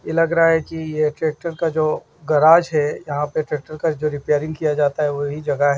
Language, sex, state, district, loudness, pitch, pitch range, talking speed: Hindi, male, Maharashtra, Washim, -19 LUFS, 155 Hz, 150-160 Hz, 205 wpm